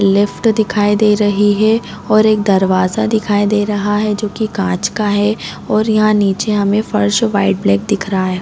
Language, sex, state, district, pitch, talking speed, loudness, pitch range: Hindi, female, Chhattisgarh, Raigarh, 205 Hz, 190 wpm, -14 LUFS, 200-215 Hz